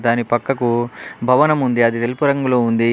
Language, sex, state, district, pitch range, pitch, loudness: Telugu, male, Telangana, Adilabad, 120-130 Hz, 120 Hz, -17 LUFS